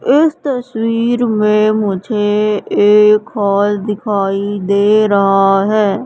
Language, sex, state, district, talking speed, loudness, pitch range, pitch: Hindi, female, Madhya Pradesh, Katni, 100 wpm, -13 LUFS, 200-215 Hz, 210 Hz